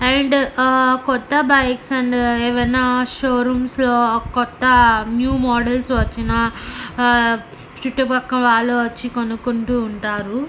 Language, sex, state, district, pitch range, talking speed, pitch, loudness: Telugu, female, Andhra Pradesh, Anantapur, 240-255 Hz, 105 wpm, 245 Hz, -17 LUFS